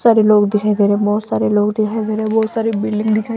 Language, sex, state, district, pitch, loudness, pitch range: Hindi, female, Rajasthan, Jaipur, 215 Hz, -16 LUFS, 210-220 Hz